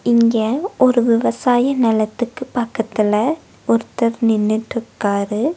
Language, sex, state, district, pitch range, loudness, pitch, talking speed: Tamil, female, Tamil Nadu, Nilgiris, 220-245 Hz, -18 LUFS, 230 Hz, 75 wpm